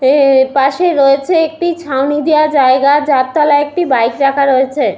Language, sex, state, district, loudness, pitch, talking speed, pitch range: Bengali, female, West Bengal, Paschim Medinipur, -11 LUFS, 280 Hz, 180 wpm, 270-305 Hz